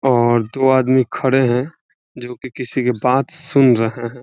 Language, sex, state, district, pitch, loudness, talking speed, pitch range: Hindi, male, Bihar, Saran, 130 Hz, -16 LUFS, 185 wpm, 120-130 Hz